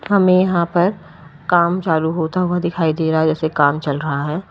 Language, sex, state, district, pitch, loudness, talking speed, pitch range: Hindi, female, Uttar Pradesh, Lalitpur, 160 Hz, -17 LUFS, 215 wpm, 155-180 Hz